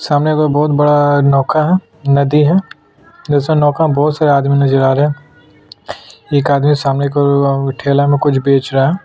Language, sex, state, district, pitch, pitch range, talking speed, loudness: Hindi, male, Chhattisgarh, Sukma, 145 Hz, 140-150 Hz, 180 wpm, -12 LUFS